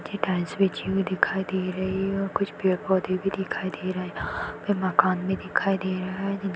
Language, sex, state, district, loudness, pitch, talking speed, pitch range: Hindi, female, Chhattisgarh, Jashpur, -26 LUFS, 190 Hz, 210 wpm, 185-195 Hz